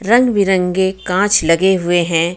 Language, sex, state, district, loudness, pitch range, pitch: Hindi, female, Jharkhand, Ranchi, -14 LUFS, 175-195 Hz, 190 Hz